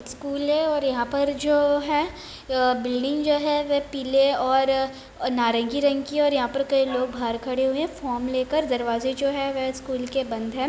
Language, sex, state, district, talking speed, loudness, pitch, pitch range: Hindi, female, Bihar, Begusarai, 190 wpm, -24 LUFS, 270 Hz, 255-285 Hz